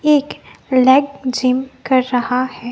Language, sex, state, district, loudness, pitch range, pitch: Hindi, female, Bihar, West Champaran, -16 LUFS, 255-270 Hz, 260 Hz